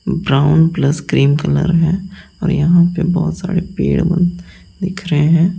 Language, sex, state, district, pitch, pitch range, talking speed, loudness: Hindi, male, Delhi, New Delhi, 175 Hz, 160-180 Hz, 160 wpm, -15 LUFS